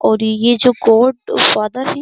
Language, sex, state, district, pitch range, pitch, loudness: Hindi, female, Uttar Pradesh, Jyotiba Phule Nagar, 220-255 Hz, 240 Hz, -13 LUFS